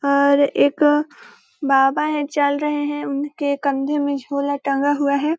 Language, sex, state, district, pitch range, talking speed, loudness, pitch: Hindi, female, Chhattisgarh, Balrampur, 280-295 Hz, 155 wpm, -19 LUFS, 285 Hz